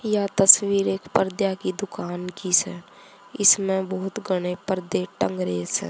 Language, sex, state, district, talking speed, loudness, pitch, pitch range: Hindi, female, Haryana, Charkhi Dadri, 155 wpm, -21 LUFS, 190 Hz, 180-200 Hz